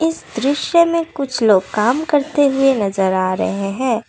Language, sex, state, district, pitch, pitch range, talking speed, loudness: Hindi, female, Assam, Kamrup Metropolitan, 265 Hz, 205-295 Hz, 175 wpm, -16 LUFS